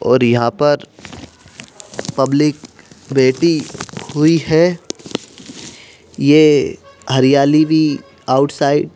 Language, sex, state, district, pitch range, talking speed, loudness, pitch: Hindi, male, Madhya Pradesh, Bhopal, 135-155 Hz, 80 wpm, -14 LUFS, 145 Hz